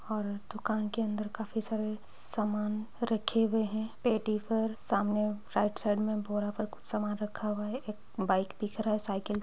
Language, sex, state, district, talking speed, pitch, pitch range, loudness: Hindi, female, Bihar, Begusarai, 190 wpm, 215 Hz, 210-220 Hz, -32 LUFS